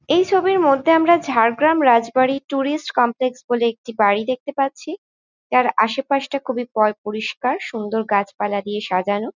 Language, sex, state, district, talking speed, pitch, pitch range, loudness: Bengali, female, West Bengal, Jhargram, 140 wpm, 250 Hz, 220-280 Hz, -19 LUFS